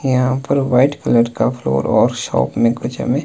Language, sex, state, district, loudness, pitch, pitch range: Hindi, male, Himachal Pradesh, Shimla, -16 LUFS, 130 Hz, 120-135 Hz